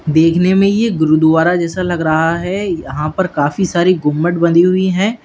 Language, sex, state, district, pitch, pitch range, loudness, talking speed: Hindi, male, Uttar Pradesh, Lalitpur, 170 Hz, 160-185 Hz, -14 LUFS, 185 wpm